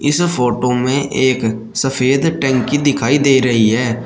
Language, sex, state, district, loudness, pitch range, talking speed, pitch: Hindi, male, Uttar Pradesh, Shamli, -15 LUFS, 120-140 Hz, 150 wpm, 130 Hz